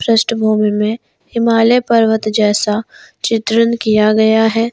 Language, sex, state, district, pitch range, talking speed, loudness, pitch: Hindi, female, Jharkhand, Garhwa, 215-230 Hz, 115 wpm, -13 LUFS, 220 Hz